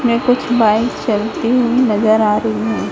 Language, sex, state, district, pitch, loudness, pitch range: Hindi, female, Chhattisgarh, Raipur, 225 Hz, -15 LUFS, 215-245 Hz